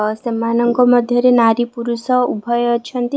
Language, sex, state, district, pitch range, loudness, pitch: Odia, female, Odisha, Khordha, 235-245 Hz, -15 LUFS, 240 Hz